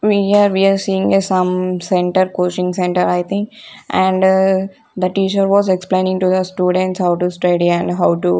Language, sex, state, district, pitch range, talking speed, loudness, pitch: English, female, Punjab, Kapurthala, 180-195 Hz, 185 wpm, -15 LUFS, 185 Hz